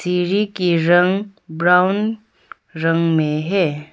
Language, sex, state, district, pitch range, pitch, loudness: Hindi, female, Arunachal Pradesh, Longding, 165-195 Hz, 180 Hz, -17 LUFS